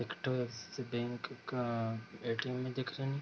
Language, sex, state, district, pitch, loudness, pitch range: Hindi, male, Bihar, Darbhanga, 125 Hz, -39 LUFS, 120-130 Hz